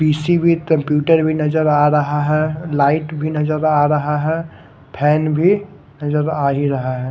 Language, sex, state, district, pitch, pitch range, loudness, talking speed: Hindi, male, Odisha, Khordha, 150 Hz, 145-155 Hz, -17 LUFS, 175 wpm